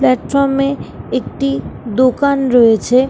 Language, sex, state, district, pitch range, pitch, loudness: Bengali, female, West Bengal, Kolkata, 240-275 Hz, 260 Hz, -14 LUFS